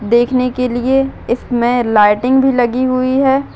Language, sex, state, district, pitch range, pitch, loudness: Hindi, female, Maharashtra, Aurangabad, 240-260 Hz, 250 Hz, -14 LUFS